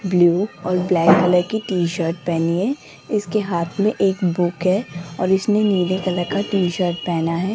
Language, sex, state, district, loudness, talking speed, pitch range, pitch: Hindi, female, Rajasthan, Jaipur, -19 LUFS, 165 wpm, 175-200 Hz, 180 Hz